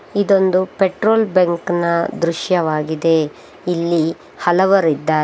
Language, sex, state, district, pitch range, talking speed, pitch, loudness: Kannada, female, Karnataka, Bangalore, 165-190 Hz, 80 wpm, 175 Hz, -17 LUFS